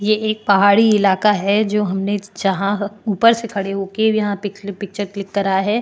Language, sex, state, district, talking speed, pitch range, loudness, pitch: Hindi, female, Uttarakhand, Tehri Garhwal, 195 wpm, 195-210 Hz, -17 LUFS, 205 Hz